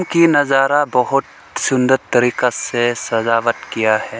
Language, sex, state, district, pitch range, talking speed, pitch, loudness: Hindi, male, Arunachal Pradesh, Lower Dibang Valley, 115-140 Hz, 130 wpm, 125 Hz, -16 LUFS